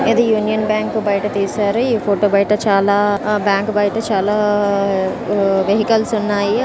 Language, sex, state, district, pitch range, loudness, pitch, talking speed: Telugu, female, Telangana, Nalgonda, 200-215 Hz, -16 LUFS, 205 Hz, 135 wpm